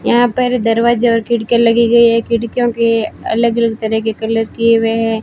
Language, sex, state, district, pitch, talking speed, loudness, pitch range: Hindi, female, Rajasthan, Barmer, 230 Hz, 205 wpm, -13 LUFS, 225-235 Hz